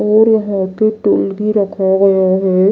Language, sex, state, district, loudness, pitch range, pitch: Hindi, female, Odisha, Nuapada, -13 LUFS, 190-210 Hz, 195 Hz